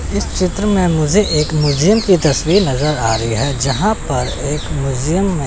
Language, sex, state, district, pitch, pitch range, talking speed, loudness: Hindi, male, Chandigarh, Chandigarh, 155 Hz, 135-185 Hz, 185 wpm, -15 LUFS